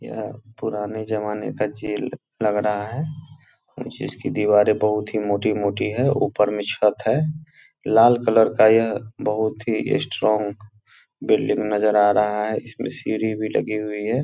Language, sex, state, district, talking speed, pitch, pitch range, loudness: Hindi, male, Bihar, Purnia, 150 wpm, 105 Hz, 105-110 Hz, -21 LUFS